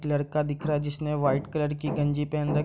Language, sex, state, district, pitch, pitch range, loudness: Hindi, male, Bihar, East Champaran, 150 Hz, 145-150 Hz, -28 LUFS